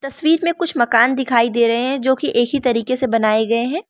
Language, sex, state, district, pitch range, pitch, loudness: Hindi, female, Arunachal Pradesh, Lower Dibang Valley, 235-275 Hz, 255 Hz, -17 LUFS